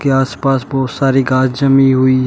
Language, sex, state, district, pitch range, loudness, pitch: Hindi, male, Uttar Pradesh, Shamli, 130-135 Hz, -13 LUFS, 135 Hz